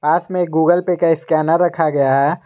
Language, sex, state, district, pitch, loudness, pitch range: Hindi, male, Jharkhand, Garhwa, 165 Hz, -16 LUFS, 155-175 Hz